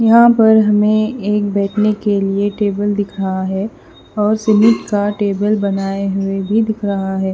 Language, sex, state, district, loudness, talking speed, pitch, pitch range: Hindi, female, Haryana, Rohtak, -15 LUFS, 165 wpm, 205 Hz, 195-215 Hz